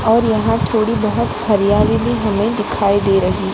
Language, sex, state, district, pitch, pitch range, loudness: Hindi, female, Gujarat, Gandhinagar, 215 Hz, 205-225 Hz, -15 LUFS